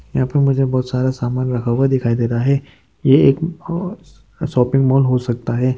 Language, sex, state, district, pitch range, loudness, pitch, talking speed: Hindi, male, Maharashtra, Sindhudurg, 125-140 Hz, -17 LUFS, 130 Hz, 205 wpm